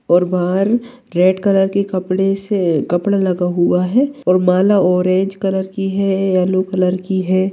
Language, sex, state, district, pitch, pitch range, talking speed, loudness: Hindi, male, Bihar, Bhagalpur, 190 Hz, 180-195 Hz, 165 wpm, -16 LUFS